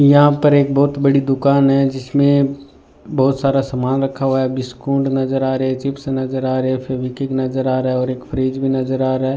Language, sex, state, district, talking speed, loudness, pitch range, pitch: Hindi, male, Rajasthan, Bikaner, 245 wpm, -17 LUFS, 130-140 Hz, 135 Hz